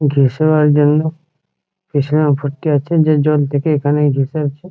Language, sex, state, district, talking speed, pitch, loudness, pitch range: Bengali, male, West Bengal, Jhargram, 140 wpm, 150 Hz, -15 LUFS, 145-155 Hz